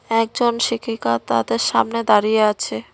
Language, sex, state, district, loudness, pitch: Bengali, female, West Bengal, Cooch Behar, -19 LUFS, 215 Hz